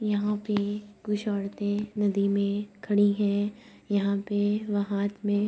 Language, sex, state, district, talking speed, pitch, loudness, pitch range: Hindi, female, Uttar Pradesh, Budaun, 140 wpm, 205 Hz, -28 LUFS, 200-210 Hz